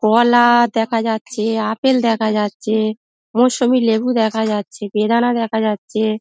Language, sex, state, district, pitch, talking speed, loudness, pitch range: Bengali, female, West Bengal, Dakshin Dinajpur, 225 Hz, 125 wpm, -17 LUFS, 215-240 Hz